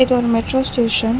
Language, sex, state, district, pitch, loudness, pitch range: Tamil, female, Tamil Nadu, Chennai, 240 Hz, -17 LUFS, 230-255 Hz